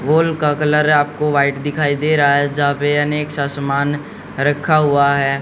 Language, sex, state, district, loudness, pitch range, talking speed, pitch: Hindi, male, Haryana, Jhajjar, -16 LUFS, 140-150 Hz, 190 wpm, 145 Hz